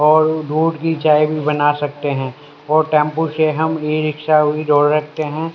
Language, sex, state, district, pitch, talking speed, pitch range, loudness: Hindi, male, Haryana, Rohtak, 155 Hz, 195 wpm, 150-155 Hz, -16 LUFS